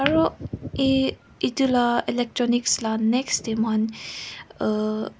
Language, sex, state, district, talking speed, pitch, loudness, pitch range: Nagamese, female, Nagaland, Kohima, 90 wpm, 240 Hz, -23 LUFS, 220-265 Hz